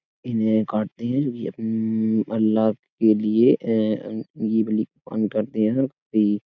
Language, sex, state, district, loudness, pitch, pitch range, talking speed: Hindi, male, Uttar Pradesh, Etah, -22 LUFS, 110 Hz, 110-115 Hz, 120 wpm